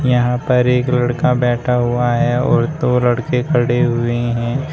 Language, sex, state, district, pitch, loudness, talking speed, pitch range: Hindi, male, Uttar Pradesh, Shamli, 125 Hz, -16 LUFS, 165 wpm, 120-125 Hz